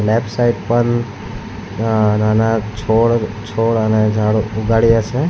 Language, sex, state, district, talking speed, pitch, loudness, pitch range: Gujarati, male, Gujarat, Valsad, 115 wpm, 110 Hz, -16 LUFS, 110-115 Hz